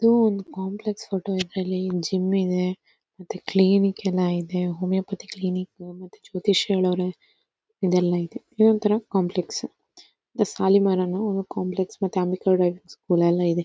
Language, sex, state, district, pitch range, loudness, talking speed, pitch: Kannada, female, Karnataka, Dakshina Kannada, 180-195 Hz, -24 LUFS, 130 wpm, 185 Hz